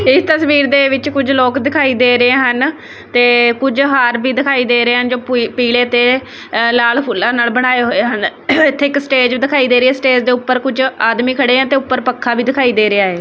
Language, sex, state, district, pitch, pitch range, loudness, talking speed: Punjabi, female, Punjab, Kapurthala, 255 Hz, 245-275 Hz, -12 LUFS, 220 wpm